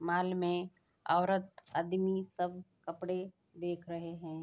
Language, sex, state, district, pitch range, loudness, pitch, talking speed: Hindi, female, Bihar, Saharsa, 170-185 Hz, -36 LUFS, 175 Hz, 120 wpm